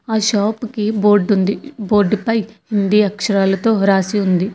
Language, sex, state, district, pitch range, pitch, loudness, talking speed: Telugu, female, Telangana, Hyderabad, 200-220 Hz, 210 Hz, -16 LUFS, 130 wpm